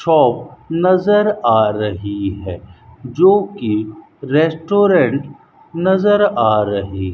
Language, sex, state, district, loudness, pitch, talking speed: Hindi, male, Rajasthan, Bikaner, -15 LUFS, 140 Hz, 100 wpm